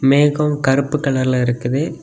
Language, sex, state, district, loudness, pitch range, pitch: Tamil, male, Tamil Nadu, Kanyakumari, -17 LUFS, 130-150 Hz, 140 Hz